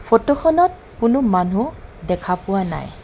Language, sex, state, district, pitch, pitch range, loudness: Assamese, female, Assam, Kamrup Metropolitan, 225 Hz, 180-275 Hz, -19 LUFS